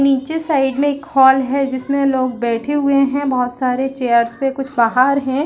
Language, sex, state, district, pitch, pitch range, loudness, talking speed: Hindi, female, Chhattisgarh, Raigarh, 270 Hz, 255-280 Hz, -16 LUFS, 200 wpm